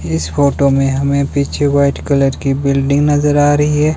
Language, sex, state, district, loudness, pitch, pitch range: Hindi, male, Himachal Pradesh, Shimla, -14 LUFS, 140 Hz, 135-145 Hz